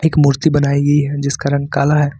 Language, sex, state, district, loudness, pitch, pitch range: Hindi, male, Jharkhand, Ranchi, -15 LUFS, 140 Hz, 140-145 Hz